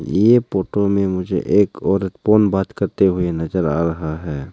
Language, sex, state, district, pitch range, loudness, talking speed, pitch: Hindi, male, Arunachal Pradesh, Lower Dibang Valley, 85-100 Hz, -18 LUFS, 185 wpm, 95 Hz